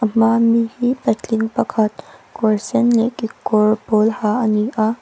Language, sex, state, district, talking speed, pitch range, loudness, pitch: Mizo, female, Mizoram, Aizawl, 180 wpm, 215-230 Hz, -17 LUFS, 225 Hz